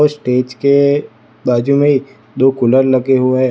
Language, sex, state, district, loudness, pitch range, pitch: Hindi, male, Gujarat, Valsad, -13 LUFS, 125-140 Hz, 130 Hz